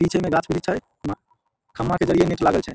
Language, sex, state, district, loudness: Maithili, male, Bihar, Samastipur, -22 LUFS